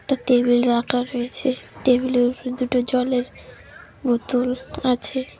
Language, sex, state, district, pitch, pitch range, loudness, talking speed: Bengali, female, West Bengal, Cooch Behar, 250 Hz, 245-255 Hz, -21 LUFS, 110 wpm